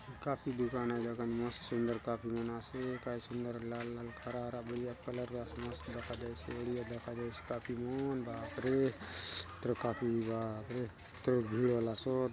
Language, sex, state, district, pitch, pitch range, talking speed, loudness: Halbi, male, Chhattisgarh, Bastar, 120 Hz, 115-125 Hz, 195 wpm, -39 LUFS